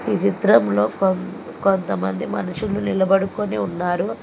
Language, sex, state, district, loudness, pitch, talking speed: Telugu, female, Telangana, Hyderabad, -20 LUFS, 180 Hz, 100 wpm